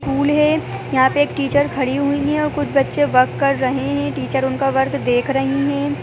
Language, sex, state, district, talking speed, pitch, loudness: Hindi, female, Bihar, Begusarai, 210 wpm, 260 Hz, -18 LUFS